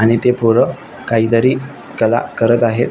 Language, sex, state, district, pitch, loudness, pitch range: Marathi, male, Maharashtra, Nagpur, 115 Hz, -15 LUFS, 115-120 Hz